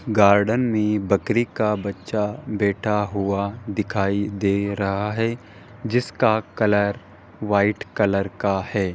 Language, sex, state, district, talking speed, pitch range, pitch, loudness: Hindi, male, Rajasthan, Jaipur, 115 wpm, 100-110 Hz, 105 Hz, -22 LUFS